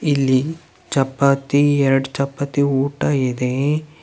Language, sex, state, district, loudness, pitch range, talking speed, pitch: Kannada, male, Karnataka, Chamarajanagar, -19 LUFS, 135-145 Hz, 90 wpm, 140 Hz